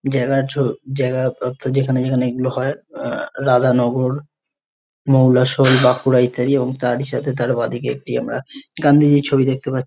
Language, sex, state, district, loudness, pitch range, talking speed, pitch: Bengali, male, West Bengal, Jhargram, -17 LUFS, 125-140 Hz, 115 wpm, 130 Hz